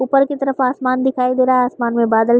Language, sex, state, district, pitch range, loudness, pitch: Hindi, female, Uttar Pradesh, Gorakhpur, 240-265 Hz, -16 LUFS, 255 Hz